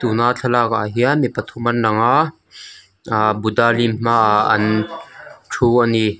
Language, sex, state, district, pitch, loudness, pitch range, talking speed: Mizo, male, Mizoram, Aizawl, 115 Hz, -17 LUFS, 110-120 Hz, 155 wpm